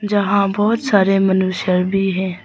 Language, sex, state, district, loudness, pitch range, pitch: Hindi, female, Arunachal Pradesh, Papum Pare, -16 LUFS, 190-205 Hz, 195 Hz